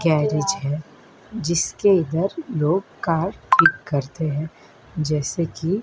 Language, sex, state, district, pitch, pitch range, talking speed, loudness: Hindi, male, Madhya Pradesh, Dhar, 160 Hz, 150-190 Hz, 115 wpm, -21 LUFS